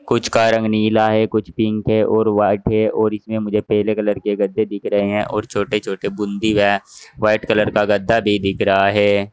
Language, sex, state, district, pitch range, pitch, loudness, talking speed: Hindi, male, Uttar Pradesh, Saharanpur, 105-110 Hz, 105 Hz, -17 LUFS, 210 wpm